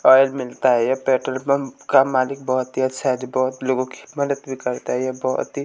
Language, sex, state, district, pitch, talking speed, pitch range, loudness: Hindi, male, Bihar, West Champaran, 130 Hz, 245 wpm, 130-135 Hz, -21 LUFS